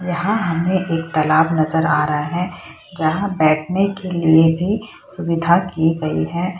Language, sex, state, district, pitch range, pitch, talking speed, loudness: Hindi, female, Bihar, Purnia, 160-180 Hz, 170 Hz, 155 wpm, -18 LUFS